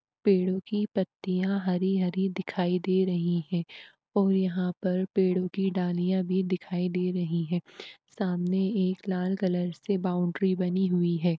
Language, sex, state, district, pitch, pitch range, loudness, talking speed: Hindi, female, Uttar Pradesh, Etah, 185 Hz, 180-190 Hz, -28 LUFS, 155 wpm